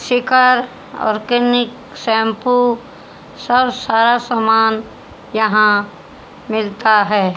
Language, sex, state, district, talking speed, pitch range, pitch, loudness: Hindi, female, Haryana, Charkhi Dadri, 75 wpm, 220-245 Hz, 225 Hz, -15 LUFS